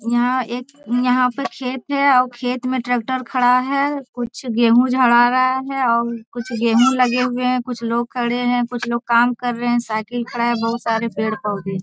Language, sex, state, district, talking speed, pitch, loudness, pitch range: Hindi, female, Bihar, Jamui, 205 wpm, 245 Hz, -19 LUFS, 235-255 Hz